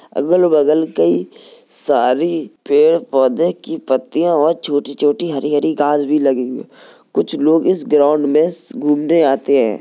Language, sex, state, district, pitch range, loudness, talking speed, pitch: Hindi, female, Uttar Pradesh, Jalaun, 140-165 Hz, -15 LUFS, 145 wpm, 150 Hz